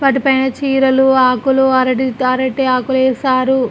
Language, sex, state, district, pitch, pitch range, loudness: Telugu, male, Andhra Pradesh, Srikakulam, 260 Hz, 255-265 Hz, -13 LUFS